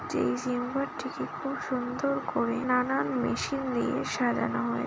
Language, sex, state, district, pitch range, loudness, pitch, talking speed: Bengali, female, West Bengal, Jalpaiguri, 240-260 Hz, -30 LUFS, 250 Hz, 135 wpm